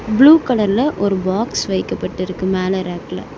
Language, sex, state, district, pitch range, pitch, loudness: Tamil, female, Tamil Nadu, Chennai, 175-220 Hz, 190 Hz, -17 LUFS